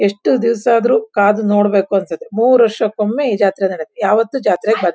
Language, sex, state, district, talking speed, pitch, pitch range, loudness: Kannada, female, Karnataka, Shimoga, 160 wpm, 210 Hz, 200-230 Hz, -15 LUFS